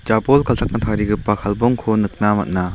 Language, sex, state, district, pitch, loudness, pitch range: Garo, male, Meghalaya, West Garo Hills, 105 Hz, -18 LUFS, 105-115 Hz